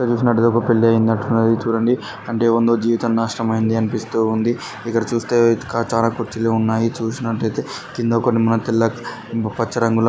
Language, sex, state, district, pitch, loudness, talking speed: Telugu, male, Telangana, Karimnagar, 115 Hz, -19 LUFS, 165 wpm